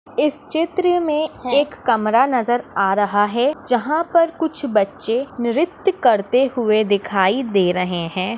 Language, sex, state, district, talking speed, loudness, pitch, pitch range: Hindi, female, Maharashtra, Pune, 145 wpm, -18 LUFS, 245 Hz, 205-300 Hz